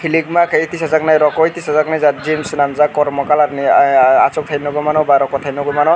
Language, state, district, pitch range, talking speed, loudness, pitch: Kokborok, Tripura, West Tripura, 145-155 Hz, 200 wpm, -14 LUFS, 150 Hz